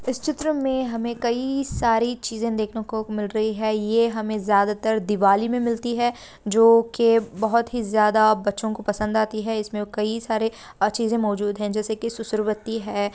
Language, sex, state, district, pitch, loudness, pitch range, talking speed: Hindi, female, Bihar, Bhagalpur, 220 Hz, -22 LUFS, 215-230 Hz, 185 wpm